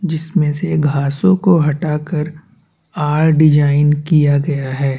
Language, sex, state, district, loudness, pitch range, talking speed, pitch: Hindi, male, Chhattisgarh, Bastar, -15 LUFS, 145-160 Hz, 145 wpm, 150 Hz